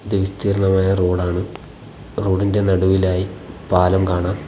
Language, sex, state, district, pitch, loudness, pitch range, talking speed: Malayalam, male, Kerala, Kollam, 95 Hz, -18 LUFS, 90-95 Hz, 105 wpm